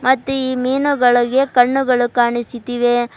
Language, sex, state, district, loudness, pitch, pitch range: Kannada, female, Karnataka, Bidar, -16 LUFS, 250 Hz, 240-265 Hz